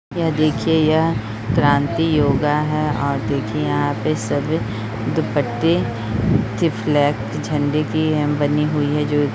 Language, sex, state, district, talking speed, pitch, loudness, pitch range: Hindi, female, Bihar, Jahanabad, 135 wpm, 145 Hz, -19 LUFS, 135-155 Hz